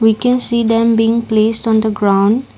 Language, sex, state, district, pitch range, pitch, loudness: English, female, Assam, Kamrup Metropolitan, 220-235 Hz, 225 Hz, -13 LUFS